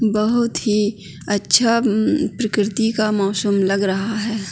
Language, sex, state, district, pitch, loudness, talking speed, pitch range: Hindi, female, Uttarakhand, Tehri Garhwal, 210 Hz, -18 LUFS, 130 wpm, 200-225 Hz